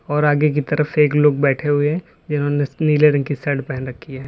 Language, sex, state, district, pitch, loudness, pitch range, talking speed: Hindi, male, Uttar Pradesh, Lalitpur, 145 Hz, -18 LUFS, 145-150 Hz, 240 wpm